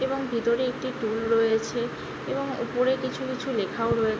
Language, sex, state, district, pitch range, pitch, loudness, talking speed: Bengali, female, West Bengal, Jhargram, 225-260 Hz, 235 Hz, -27 LUFS, 155 wpm